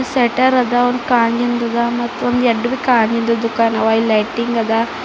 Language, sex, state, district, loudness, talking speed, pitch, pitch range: Kannada, female, Karnataka, Bidar, -16 LUFS, 120 wpm, 235 Hz, 230-245 Hz